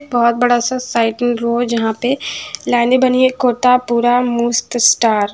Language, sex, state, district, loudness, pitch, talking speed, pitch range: Hindi, female, Punjab, Fazilka, -15 LUFS, 240 Hz, 180 wpm, 235-250 Hz